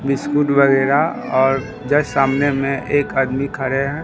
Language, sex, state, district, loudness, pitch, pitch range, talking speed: Hindi, male, Bihar, Katihar, -17 LUFS, 140 Hz, 135-145 Hz, 150 wpm